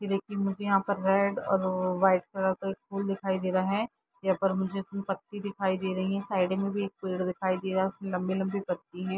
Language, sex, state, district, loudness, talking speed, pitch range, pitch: Hindi, female, Uttar Pradesh, Jalaun, -30 LUFS, 240 wpm, 185-200 Hz, 195 Hz